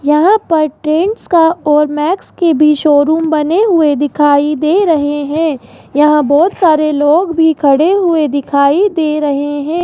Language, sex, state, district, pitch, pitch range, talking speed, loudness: Hindi, female, Rajasthan, Jaipur, 305 Hz, 295-330 Hz, 160 wpm, -11 LUFS